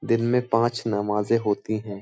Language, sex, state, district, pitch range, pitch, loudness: Hindi, male, Uttar Pradesh, Jyotiba Phule Nagar, 105-115 Hz, 115 Hz, -24 LUFS